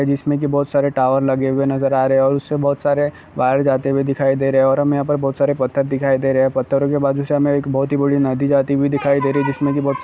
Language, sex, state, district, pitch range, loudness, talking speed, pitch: Hindi, male, Jharkhand, Jamtara, 135-140 Hz, -17 LUFS, 305 wpm, 140 Hz